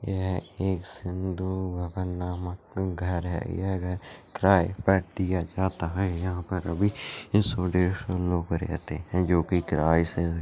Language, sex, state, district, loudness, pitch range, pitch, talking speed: Hindi, male, Chhattisgarh, Rajnandgaon, -28 LUFS, 90-95 Hz, 90 Hz, 155 wpm